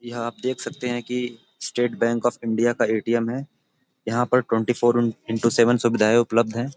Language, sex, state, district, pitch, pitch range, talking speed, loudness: Hindi, male, Uttar Pradesh, Gorakhpur, 120 Hz, 115-120 Hz, 205 wpm, -22 LUFS